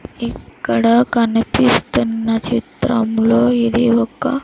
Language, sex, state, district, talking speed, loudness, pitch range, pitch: Telugu, female, Andhra Pradesh, Sri Satya Sai, 70 wpm, -16 LUFS, 225-240 Hz, 230 Hz